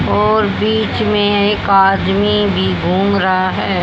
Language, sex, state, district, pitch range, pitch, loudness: Hindi, male, Haryana, Jhajjar, 190-210 Hz, 200 Hz, -14 LUFS